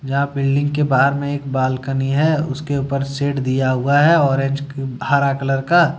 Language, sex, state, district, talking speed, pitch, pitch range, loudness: Hindi, male, Jharkhand, Deoghar, 190 wpm, 140 Hz, 135-145 Hz, -18 LUFS